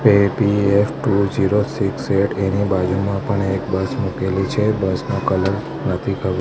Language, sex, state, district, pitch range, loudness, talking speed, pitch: Gujarati, male, Gujarat, Gandhinagar, 95-105 Hz, -19 LUFS, 160 wpm, 100 Hz